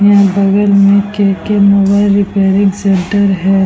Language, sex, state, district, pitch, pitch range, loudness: Hindi, female, Bihar, Vaishali, 200 Hz, 195-200 Hz, -10 LUFS